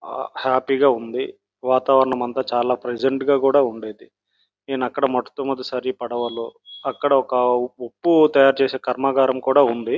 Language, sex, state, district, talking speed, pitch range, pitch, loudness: Telugu, male, Andhra Pradesh, Srikakulam, 130 wpm, 125-135 Hz, 130 Hz, -20 LUFS